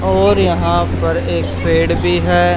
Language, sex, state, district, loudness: Hindi, male, Haryana, Charkhi Dadri, -14 LUFS